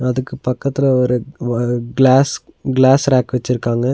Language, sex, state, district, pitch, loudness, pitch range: Tamil, male, Tamil Nadu, Nilgiris, 125 Hz, -16 LUFS, 120-135 Hz